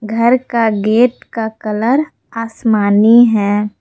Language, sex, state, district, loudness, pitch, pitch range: Hindi, female, Jharkhand, Palamu, -13 LUFS, 225 Hz, 215-235 Hz